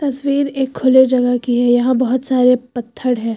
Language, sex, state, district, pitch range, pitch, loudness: Hindi, female, Uttar Pradesh, Lucknow, 245-260 Hz, 250 Hz, -15 LUFS